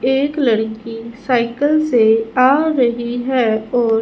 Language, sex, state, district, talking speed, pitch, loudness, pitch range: Hindi, female, Punjab, Fazilka, 120 wpm, 240 Hz, -16 LUFS, 225-265 Hz